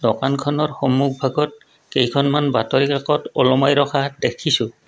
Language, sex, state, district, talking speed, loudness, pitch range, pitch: Assamese, male, Assam, Kamrup Metropolitan, 100 wpm, -19 LUFS, 135-145 Hz, 140 Hz